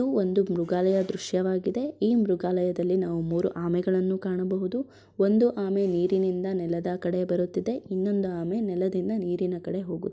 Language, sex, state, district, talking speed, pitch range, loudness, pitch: Kannada, female, Karnataka, Shimoga, 130 wpm, 180-195 Hz, -27 LUFS, 185 Hz